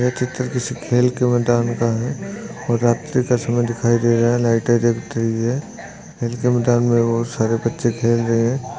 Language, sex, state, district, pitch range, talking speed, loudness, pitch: Hindi, male, Chhattisgarh, Jashpur, 115-125 Hz, 205 wpm, -19 LUFS, 120 Hz